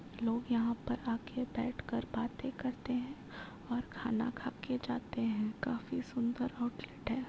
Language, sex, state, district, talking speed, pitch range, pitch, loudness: Hindi, female, Uttar Pradesh, Muzaffarnagar, 150 wpm, 235-255 Hz, 245 Hz, -38 LUFS